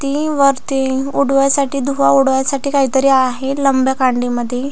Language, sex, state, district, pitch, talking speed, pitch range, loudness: Marathi, female, Maharashtra, Aurangabad, 270 Hz, 140 wpm, 265-275 Hz, -15 LUFS